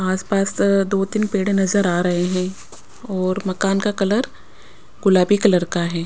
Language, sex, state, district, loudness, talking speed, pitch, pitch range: Hindi, female, Punjab, Pathankot, -19 LUFS, 170 wpm, 195 Hz, 185-200 Hz